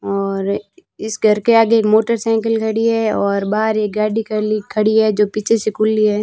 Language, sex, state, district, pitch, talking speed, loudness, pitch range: Hindi, female, Rajasthan, Barmer, 215 Hz, 190 wpm, -16 LUFS, 210-225 Hz